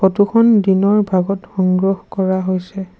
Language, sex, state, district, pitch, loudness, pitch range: Assamese, male, Assam, Sonitpur, 190 Hz, -15 LUFS, 185-200 Hz